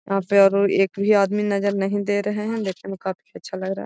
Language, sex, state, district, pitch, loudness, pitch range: Magahi, female, Bihar, Gaya, 200 Hz, -21 LUFS, 195-205 Hz